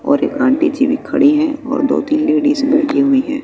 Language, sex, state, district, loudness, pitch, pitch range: Hindi, male, Bihar, West Champaran, -14 LUFS, 290 Hz, 280-300 Hz